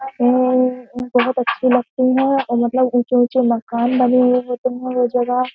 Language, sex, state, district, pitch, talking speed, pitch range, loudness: Hindi, female, Uttar Pradesh, Jyotiba Phule Nagar, 250 Hz, 175 wpm, 245-255 Hz, -17 LUFS